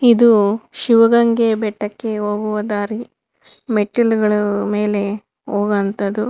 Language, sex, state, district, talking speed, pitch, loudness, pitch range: Kannada, female, Karnataka, Bangalore, 85 wpm, 210 Hz, -17 LUFS, 205-230 Hz